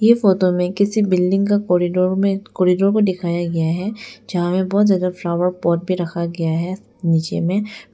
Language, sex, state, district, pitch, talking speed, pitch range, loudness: Hindi, female, Arunachal Pradesh, Lower Dibang Valley, 185 Hz, 190 wpm, 175-200 Hz, -18 LUFS